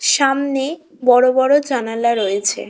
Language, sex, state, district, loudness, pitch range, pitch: Bengali, female, West Bengal, Kolkata, -16 LUFS, 235-280 Hz, 265 Hz